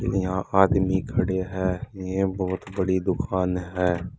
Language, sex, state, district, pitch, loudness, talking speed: Hindi, male, Uttar Pradesh, Saharanpur, 95 Hz, -25 LUFS, 130 wpm